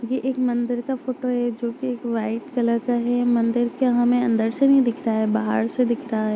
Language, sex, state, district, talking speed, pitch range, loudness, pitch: Bhojpuri, female, Bihar, Saran, 225 wpm, 230-250 Hz, -22 LUFS, 240 Hz